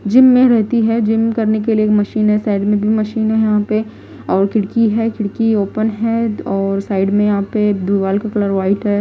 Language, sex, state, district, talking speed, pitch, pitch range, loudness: Hindi, female, Himachal Pradesh, Shimla, 215 wpm, 215 Hz, 205-225 Hz, -15 LUFS